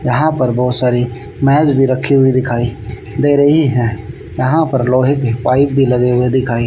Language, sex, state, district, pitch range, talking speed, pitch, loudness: Hindi, male, Haryana, Rohtak, 120-135 Hz, 190 wpm, 130 Hz, -13 LUFS